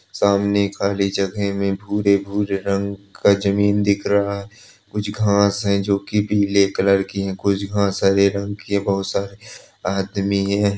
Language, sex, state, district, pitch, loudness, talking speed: Hindi, male, Chhattisgarh, Balrampur, 100 Hz, -20 LUFS, 160 wpm